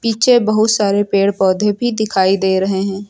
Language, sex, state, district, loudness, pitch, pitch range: Hindi, female, Uttar Pradesh, Lucknow, -14 LUFS, 205 Hz, 195-220 Hz